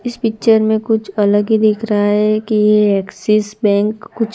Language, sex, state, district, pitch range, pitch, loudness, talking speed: Hindi, female, Gujarat, Gandhinagar, 205-220 Hz, 215 Hz, -14 LUFS, 195 wpm